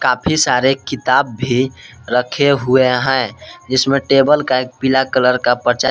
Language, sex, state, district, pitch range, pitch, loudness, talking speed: Hindi, male, Jharkhand, Palamu, 125-135 Hz, 130 Hz, -15 LUFS, 150 wpm